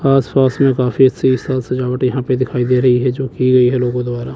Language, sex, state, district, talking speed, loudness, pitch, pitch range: Hindi, male, Chandigarh, Chandigarh, 260 wpm, -15 LUFS, 130 Hz, 125-130 Hz